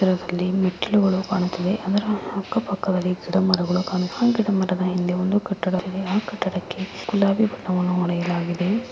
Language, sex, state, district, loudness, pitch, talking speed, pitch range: Kannada, female, Karnataka, Mysore, -23 LUFS, 185 Hz, 120 wpm, 180-200 Hz